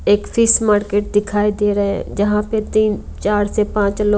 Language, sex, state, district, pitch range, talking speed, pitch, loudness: Hindi, female, Punjab, Kapurthala, 205-210 Hz, 185 wpm, 210 Hz, -17 LUFS